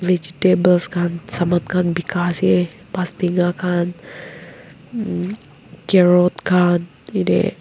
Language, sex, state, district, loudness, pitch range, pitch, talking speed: Nagamese, female, Nagaland, Kohima, -18 LUFS, 170-180 Hz, 175 Hz, 85 wpm